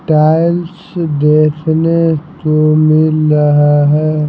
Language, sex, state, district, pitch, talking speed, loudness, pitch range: Hindi, male, Bihar, Patna, 155 Hz, 85 wpm, -11 LUFS, 150-165 Hz